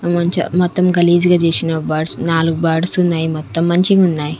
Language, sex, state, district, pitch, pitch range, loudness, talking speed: Telugu, female, Andhra Pradesh, Manyam, 170 Hz, 160-175 Hz, -14 LUFS, 180 wpm